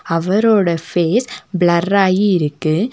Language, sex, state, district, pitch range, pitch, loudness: Tamil, female, Tamil Nadu, Nilgiris, 170-205 Hz, 185 Hz, -15 LUFS